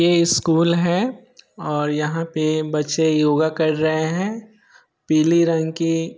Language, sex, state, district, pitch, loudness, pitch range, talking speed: Hindi, male, Bihar, Sitamarhi, 165 Hz, -19 LUFS, 155-170 Hz, 135 wpm